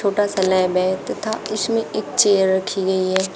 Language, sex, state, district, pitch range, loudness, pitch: Hindi, female, Uttar Pradesh, Shamli, 185-210 Hz, -19 LUFS, 190 Hz